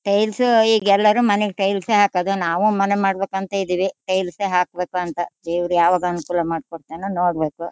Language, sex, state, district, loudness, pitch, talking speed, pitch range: Kannada, female, Karnataka, Shimoga, -19 LUFS, 190 Hz, 155 wpm, 175-200 Hz